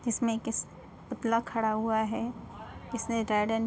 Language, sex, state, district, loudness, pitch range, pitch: Hindi, female, Uttar Pradesh, Ghazipur, -31 LUFS, 220-230 Hz, 225 Hz